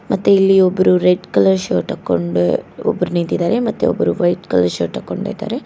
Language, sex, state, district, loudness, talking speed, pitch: Kannada, female, Karnataka, Koppal, -16 LUFS, 160 wpm, 175 Hz